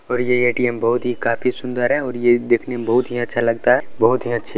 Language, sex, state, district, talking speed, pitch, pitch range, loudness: Maithili, male, Bihar, Supaul, 275 wpm, 120 Hz, 120-125 Hz, -19 LUFS